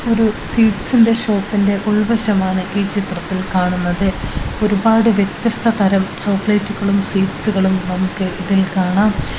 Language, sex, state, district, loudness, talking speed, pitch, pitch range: Malayalam, female, Kerala, Kozhikode, -16 LUFS, 95 wpm, 200 Hz, 190-215 Hz